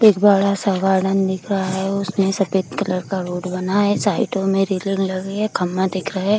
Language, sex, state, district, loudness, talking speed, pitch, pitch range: Hindi, female, Bihar, Kishanganj, -19 LUFS, 205 wpm, 195 Hz, 190-200 Hz